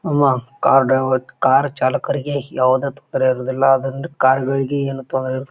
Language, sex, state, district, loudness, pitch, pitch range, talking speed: Kannada, male, Karnataka, Bijapur, -18 LUFS, 135 Hz, 130-140 Hz, 140 wpm